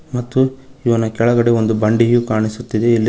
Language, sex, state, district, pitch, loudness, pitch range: Kannada, male, Karnataka, Koppal, 120 Hz, -16 LUFS, 110-120 Hz